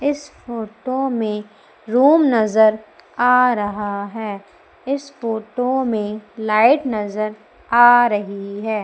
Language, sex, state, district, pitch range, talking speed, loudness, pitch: Hindi, female, Madhya Pradesh, Umaria, 210-250 Hz, 110 wpm, -18 LUFS, 220 Hz